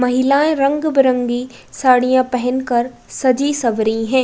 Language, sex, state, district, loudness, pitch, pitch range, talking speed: Hindi, female, Uttar Pradesh, Budaun, -16 LUFS, 255 Hz, 245-270 Hz, 85 wpm